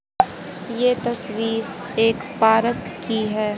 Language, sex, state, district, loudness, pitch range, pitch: Hindi, female, Haryana, Jhajjar, -21 LUFS, 220-240 Hz, 225 Hz